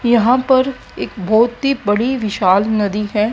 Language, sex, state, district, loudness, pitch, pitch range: Hindi, female, Haryana, Jhajjar, -15 LUFS, 225 Hz, 210-250 Hz